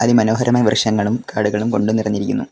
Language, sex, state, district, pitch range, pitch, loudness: Malayalam, male, Kerala, Kollam, 105-120 Hz, 110 Hz, -17 LUFS